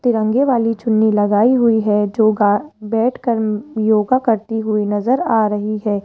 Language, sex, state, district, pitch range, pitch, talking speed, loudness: Hindi, male, Rajasthan, Jaipur, 210-235 Hz, 220 Hz, 160 wpm, -16 LUFS